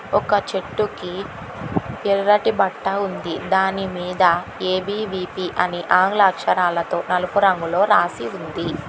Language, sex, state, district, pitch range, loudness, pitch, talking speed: Telugu, female, Telangana, Hyderabad, 180-200 Hz, -20 LUFS, 190 Hz, 100 wpm